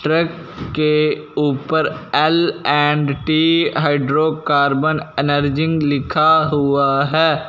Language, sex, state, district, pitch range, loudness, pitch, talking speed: Hindi, male, Punjab, Fazilka, 145-160 Hz, -16 LUFS, 150 Hz, 90 wpm